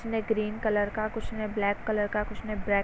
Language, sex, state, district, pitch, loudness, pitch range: Hindi, female, Uttar Pradesh, Varanasi, 215 Hz, -30 LUFS, 210-220 Hz